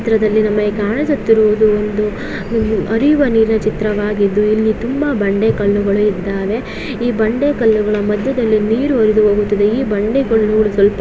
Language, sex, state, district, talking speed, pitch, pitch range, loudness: Kannada, female, Karnataka, Raichur, 120 wpm, 215 Hz, 210-225 Hz, -15 LUFS